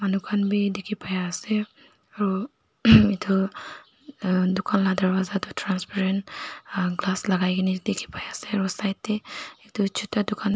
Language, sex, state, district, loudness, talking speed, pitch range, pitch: Nagamese, female, Nagaland, Dimapur, -25 LUFS, 140 wpm, 185-210 Hz, 200 Hz